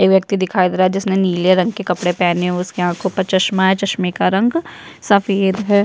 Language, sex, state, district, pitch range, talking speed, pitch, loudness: Hindi, female, Chhattisgarh, Jashpur, 180-200 Hz, 235 wpm, 190 Hz, -16 LUFS